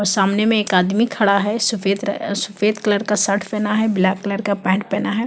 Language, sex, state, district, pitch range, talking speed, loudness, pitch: Hindi, female, Chhattisgarh, Kabirdham, 200-215 Hz, 250 wpm, -18 LUFS, 205 Hz